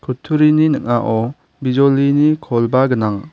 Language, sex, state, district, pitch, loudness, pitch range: Garo, male, Meghalaya, West Garo Hills, 130 Hz, -15 LUFS, 120-150 Hz